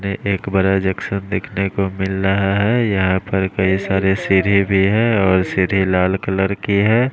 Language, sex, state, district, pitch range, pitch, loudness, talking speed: Hindi, male, Maharashtra, Mumbai Suburban, 95-100 Hz, 95 Hz, -17 LUFS, 160 wpm